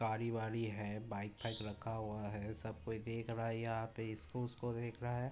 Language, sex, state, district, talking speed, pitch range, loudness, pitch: Hindi, male, Uttar Pradesh, Budaun, 225 wpm, 110-115 Hz, -43 LUFS, 115 Hz